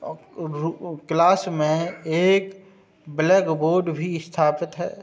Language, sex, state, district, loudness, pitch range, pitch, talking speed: Hindi, male, Uttar Pradesh, Budaun, -22 LUFS, 160-185 Hz, 170 Hz, 85 wpm